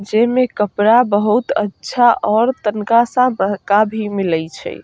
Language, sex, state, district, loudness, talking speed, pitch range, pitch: Bajjika, female, Bihar, Vaishali, -15 LUFS, 150 wpm, 205-240 Hz, 215 Hz